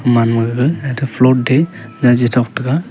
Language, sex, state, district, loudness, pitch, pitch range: Wancho, male, Arunachal Pradesh, Longding, -14 LUFS, 125 Hz, 120-140 Hz